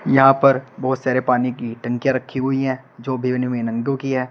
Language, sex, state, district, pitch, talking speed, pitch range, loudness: Hindi, male, Uttar Pradesh, Shamli, 130 Hz, 210 wpm, 125-135 Hz, -20 LUFS